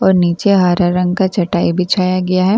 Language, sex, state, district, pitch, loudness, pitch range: Hindi, female, Bihar, Katihar, 185 Hz, -14 LUFS, 180-190 Hz